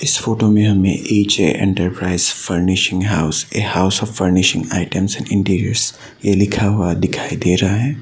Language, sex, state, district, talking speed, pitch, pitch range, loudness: Hindi, male, Assam, Sonitpur, 140 wpm, 95 Hz, 90-110 Hz, -16 LUFS